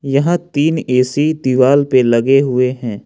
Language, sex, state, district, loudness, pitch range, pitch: Hindi, male, Jharkhand, Ranchi, -14 LUFS, 125-145 Hz, 135 Hz